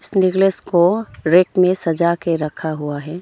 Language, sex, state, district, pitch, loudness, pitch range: Hindi, female, Arunachal Pradesh, Longding, 170 Hz, -17 LUFS, 160-185 Hz